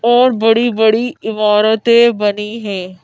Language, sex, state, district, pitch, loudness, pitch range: Hindi, female, Madhya Pradesh, Bhopal, 220 Hz, -13 LUFS, 210-235 Hz